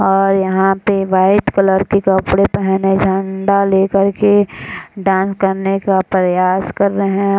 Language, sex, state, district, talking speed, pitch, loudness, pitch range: Hindi, female, Bihar, Purnia, 155 wpm, 195 Hz, -14 LUFS, 190-200 Hz